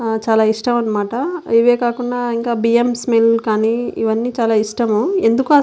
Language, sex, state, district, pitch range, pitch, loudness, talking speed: Telugu, female, Andhra Pradesh, Anantapur, 220-245 Hz, 230 Hz, -16 LUFS, 130 wpm